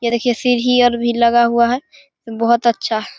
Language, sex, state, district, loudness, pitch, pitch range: Hindi, male, Bihar, Begusarai, -15 LUFS, 235 Hz, 235-245 Hz